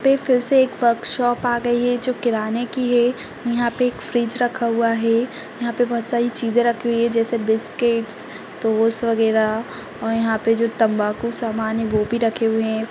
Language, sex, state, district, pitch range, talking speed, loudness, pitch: Kumaoni, female, Uttarakhand, Tehri Garhwal, 225-240 Hz, 205 wpm, -20 LUFS, 235 Hz